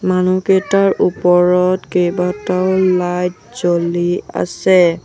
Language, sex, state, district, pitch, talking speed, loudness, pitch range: Assamese, male, Assam, Sonitpur, 180 Hz, 70 wpm, -15 LUFS, 180-185 Hz